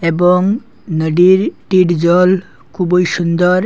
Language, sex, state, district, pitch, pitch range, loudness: Bengali, male, Assam, Hailakandi, 180 Hz, 170-185 Hz, -13 LUFS